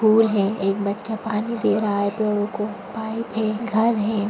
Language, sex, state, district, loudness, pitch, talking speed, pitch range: Hindi, female, Maharashtra, Nagpur, -22 LUFS, 215 Hz, 195 wpm, 205-220 Hz